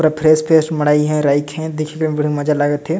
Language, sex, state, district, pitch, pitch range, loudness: Sadri, male, Chhattisgarh, Jashpur, 155 Hz, 150-155 Hz, -16 LUFS